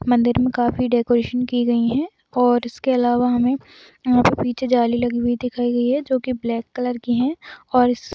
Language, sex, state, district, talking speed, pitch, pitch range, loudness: Hindi, female, Jharkhand, Sahebganj, 220 wpm, 245 Hz, 240-255 Hz, -20 LUFS